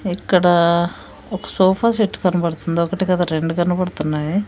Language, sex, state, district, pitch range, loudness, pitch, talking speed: Telugu, female, Andhra Pradesh, Sri Satya Sai, 170-185 Hz, -18 LUFS, 175 Hz, 120 wpm